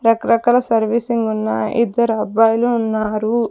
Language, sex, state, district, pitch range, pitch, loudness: Telugu, female, Andhra Pradesh, Sri Satya Sai, 220-235 Hz, 225 Hz, -17 LUFS